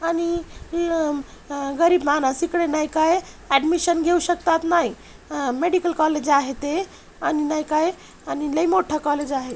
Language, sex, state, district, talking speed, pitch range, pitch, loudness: Marathi, male, Maharashtra, Chandrapur, 130 wpm, 295-340 Hz, 325 Hz, -22 LUFS